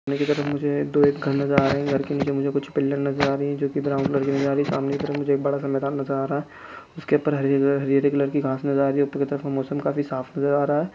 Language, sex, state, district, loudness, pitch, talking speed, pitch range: Hindi, male, Chhattisgarh, Bastar, -23 LUFS, 140 Hz, 335 wpm, 140-145 Hz